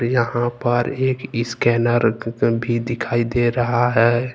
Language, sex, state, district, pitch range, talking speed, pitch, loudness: Hindi, male, Jharkhand, Ranchi, 115-120 Hz, 125 wpm, 120 Hz, -19 LUFS